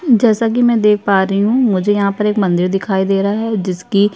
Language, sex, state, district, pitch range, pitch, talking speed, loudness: Hindi, female, Uttar Pradesh, Jyotiba Phule Nagar, 195-225 Hz, 205 Hz, 245 wpm, -14 LUFS